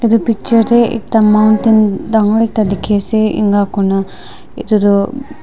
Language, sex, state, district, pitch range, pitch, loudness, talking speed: Nagamese, female, Nagaland, Dimapur, 205-230 Hz, 215 Hz, -12 LUFS, 155 wpm